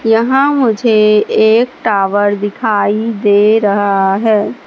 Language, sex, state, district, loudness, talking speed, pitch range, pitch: Hindi, female, Madhya Pradesh, Katni, -12 LUFS, 105 wpm, 205-225 Hz, 215 Hz